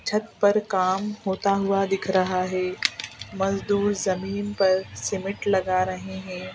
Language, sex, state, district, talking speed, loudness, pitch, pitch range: Hindi, female, Madhya Pradesh, Bhopal, 135 wpm, -24 LUFS, 190 Hz, 185-200 Hz